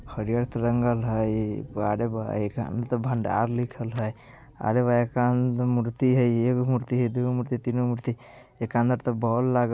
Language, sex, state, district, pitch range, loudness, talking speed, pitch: Bajjika, male, Bihar, Vaishali, 115-125 Hz, -26 LUFS, 195 wpm, 120 Hz